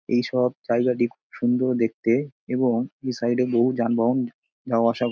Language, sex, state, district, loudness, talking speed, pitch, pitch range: Bengali, male, West Bengal, Dakshin Dinajpur, -23 LUFS, 165 wpm, 120 Hz, 115-125 Hz